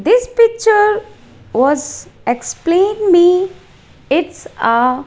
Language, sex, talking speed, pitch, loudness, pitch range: English, female, 85 wpm, 365 Hz, -14 LUFS, 290-425 Hz